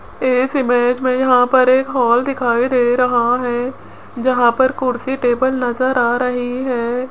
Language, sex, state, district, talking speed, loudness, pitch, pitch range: Hindi, female, Rajasthan, Jaipur, 160 wpm, -16 LUFS, 250 Hz, 245-260 Hz